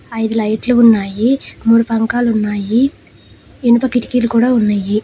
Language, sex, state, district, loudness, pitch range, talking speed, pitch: Telugu, female, Telangana, Hyderabad, -14 LUFS, 215-245 Hz, 120 wpm, 230 Hz